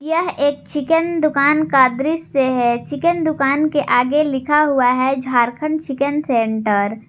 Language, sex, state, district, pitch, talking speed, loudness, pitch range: Hindi, female, Jharkhand, Garhwa, 285 Hz, 150 wpm, -17 LUFS, 255-305 Hz